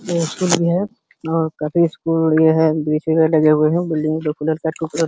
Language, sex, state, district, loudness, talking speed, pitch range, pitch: Hindi, male, Uttar Pradesh, Hamirpur, -17 LUFS, 165 wpm, 155-170 Hz, 160 Hz